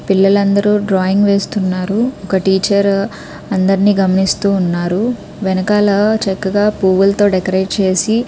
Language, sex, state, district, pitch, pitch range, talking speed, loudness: Telugu, female, Andhra Pradesh, Krishna, 195 Hz, 190-205 Hz, 110 wpm, -14 LUFS